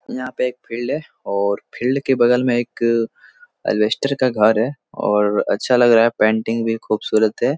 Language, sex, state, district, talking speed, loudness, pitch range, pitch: Hindi, male, Bihar, Jahanabad, 190 wpm, -18 LUFS, 110-130 Hz, 115 Hz